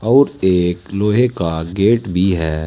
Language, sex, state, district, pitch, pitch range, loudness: Hindi, male, Uttar Pradesh, Saharanpur, 95 Hz, 85-105 Hz, -16 LUFS